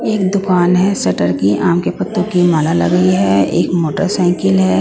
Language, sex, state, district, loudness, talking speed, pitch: Hindi, female, Punjab, Pathankot, -14 LUFS, 185 wpm, 165 Hz